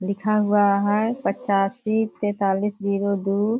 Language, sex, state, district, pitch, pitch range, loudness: Hindi, female, Bihar, Purnia, 205 Hz, 200-215 Hz, -22 LUFS